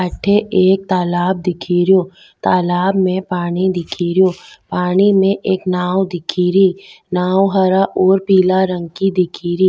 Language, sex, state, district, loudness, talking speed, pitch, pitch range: Rajasthani, female, Rajasthan, Nagaur, -15 LUFS, 125 wpm, 185 Hz, 180-190 Hz